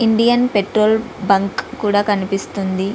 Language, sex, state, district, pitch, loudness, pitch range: Telugu, female, Andhra Pradesh, Visakhapatnam, 205 Hz, -17 LUFS, 195-220 Hz